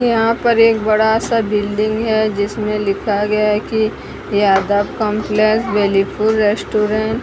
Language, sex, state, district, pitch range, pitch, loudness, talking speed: Hindi, female, Odisha, Sambalpur, 205-220 Hz, 215 Hz, -16 LUFS, 140 wpm